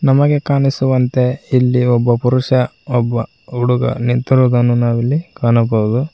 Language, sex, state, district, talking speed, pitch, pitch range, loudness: Kannada, male, Karnataka, Koppal, 105 wpm, 125 Hz, 120-130 Hz, -15 LUFS